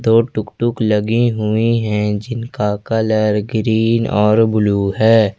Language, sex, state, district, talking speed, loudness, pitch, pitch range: Hindi, male, Jharkhand, Ranchi, 120 wpm, -16 LUFS, 110 Hz, 105-115 Hz